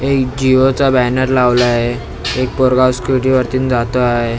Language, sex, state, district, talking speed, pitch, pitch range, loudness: Marathi, male, Maharashtra, Mumbai Suburban, 175 wpm, 130 Hz, 125-130 Hz, -14 LUFS